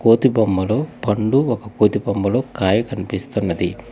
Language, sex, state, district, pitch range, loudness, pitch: Telugu, male, Telangana, Hyderabad, 100-120 Hz, -19 LUFS, 105 Hz